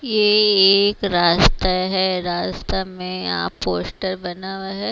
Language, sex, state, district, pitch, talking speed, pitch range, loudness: Hindi, female, Haryana, Rohtak, 185 Hz, 135 wpm, 175-195 Hz, -18 LUFS